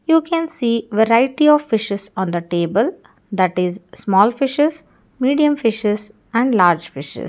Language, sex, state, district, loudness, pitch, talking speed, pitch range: English, female, Karnataka, Bangalore, -17 LUFS, 225 Hz, 150 wpm, 190-275 Hz